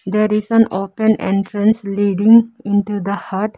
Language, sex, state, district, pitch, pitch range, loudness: English, female, Arunachal Pradesh, Lower Dibang Valley, 210 Hz, 200-220 Hz, -16 LUFS